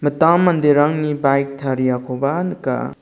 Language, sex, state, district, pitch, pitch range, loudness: Garo, male, Meghalaya, South Garo Hills, 145 Hz, 135-155 Hz, -17 LUFS